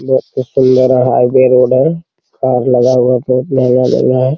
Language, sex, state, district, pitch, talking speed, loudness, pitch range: Hindi, male, Bihar, Araria, 130 Hz, 205 wpm, -11 LUFS, 125-130 Hz